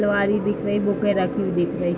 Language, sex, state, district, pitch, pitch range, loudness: Hindi, female, Uttar Pradesh, Budaun, 205 Hz, 190-205 Hz, -22 LUFS